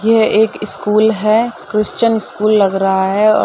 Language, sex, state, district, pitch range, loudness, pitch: Hindi, female, Uttar Pradesh, Gorakhpur, 205-220 Hz, -14 LUFS, 215 Hz